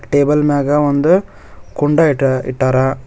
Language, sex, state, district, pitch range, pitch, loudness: Kannada, male, Karnataka, Koppal, 130-145 Hz, 140 Hz, -14 LUFS